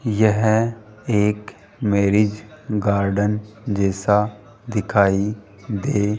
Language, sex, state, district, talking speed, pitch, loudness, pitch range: Hindi, male, Rajasthan, Jaipur, 75 wpm, 105 Hz, -20 LUFS, 100-110 Hz